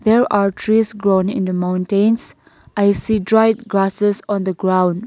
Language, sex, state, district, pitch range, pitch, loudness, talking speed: English, female, Nagaland, Kohima, 190-220 Hz, 200 Hz, -17 LUFS, 165 wpm